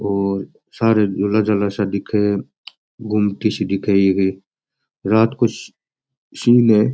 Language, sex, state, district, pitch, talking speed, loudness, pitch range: Rajasthani, male, Rajasthan, Nagaur, 105 Hz, 130 wpm, -18 LUFS, 100-115 Hz